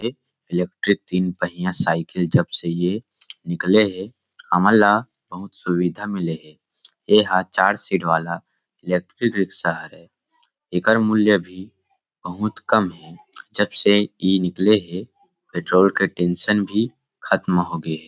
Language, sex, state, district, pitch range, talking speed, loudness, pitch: Chhattisgarhi, male, Chhattisgarh, Rajnandgaon, 90-105 Hz, 145 wpm, -20 LUFS, 95 Hz